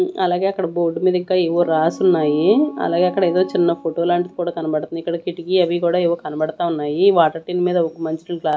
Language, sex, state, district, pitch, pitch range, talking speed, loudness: Telugu, female, Andhra Pradesh, Annamaya, 175 Hz, 165-180 Hz, 225 wpm, -19 LUFS